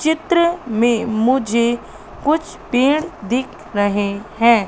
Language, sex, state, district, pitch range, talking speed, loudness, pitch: Hindi, female, Madhya Pradesh, Katni, 220-305 Hz, 100 wpm, -18 LUFS, 240 Hz